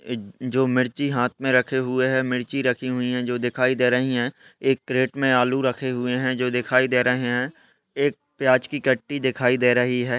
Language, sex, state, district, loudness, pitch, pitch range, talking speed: Hindi, male, Maharashtra, Sindhudurg, -22 LUFS, 125 Hz, 125-130 Hz, 210 wpm